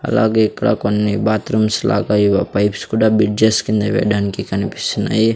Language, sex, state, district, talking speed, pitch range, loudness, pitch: Telugu, male, Andhra Pradesh, Sri Satya Sai, 135 wpm, 105-110 Hz, -16 LUFS, 105 Hz